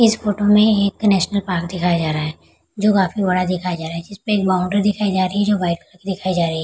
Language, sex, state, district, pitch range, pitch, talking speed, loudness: Hindi, female, Bihar, Araria, 180-205 Hz, 190 Hz, 290 wpm, -18 LUFS